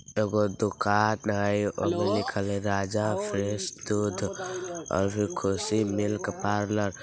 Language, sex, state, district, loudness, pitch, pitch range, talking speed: Bajjika, female, Bihar, Vaishali, -28 LUFS, 105 Hz, 100-105 Hz, 130 wpm